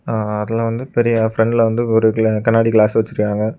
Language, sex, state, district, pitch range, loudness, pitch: Tamil, male, Tamil Nadu, Kanyakumari, 110-115 Hz, -16 LUFS, 110 Hz